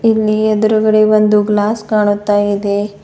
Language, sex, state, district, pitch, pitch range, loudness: Kannada, female, Karnataka, Bidar, 215 Hz, 205-215 Hz, -13 LUFS